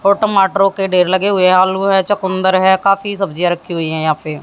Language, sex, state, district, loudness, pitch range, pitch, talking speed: Hindi, female, Haryana, Jhajjar, -14 LUFS, 180-195 Hz, 190 Hz, 230 wpm